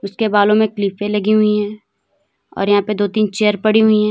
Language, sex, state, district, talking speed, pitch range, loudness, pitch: Hindi, female, Uttar Pradesh, Lalitpur, 235 wpm, 205-215 Hz, -16 LUFS, 210 Hz